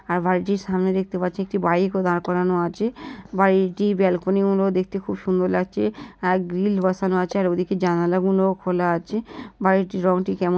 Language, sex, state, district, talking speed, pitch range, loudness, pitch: Bengali, female, West Bengal, Jhargram, 170 wpm, 180-195 Hz, -22 LUFS, 190 Hz